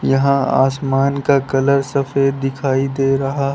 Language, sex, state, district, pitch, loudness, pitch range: Hindi, male, Uttar Pradesh, Lalitpur, 135 Hz, -17 LUFS, 135-140 Hz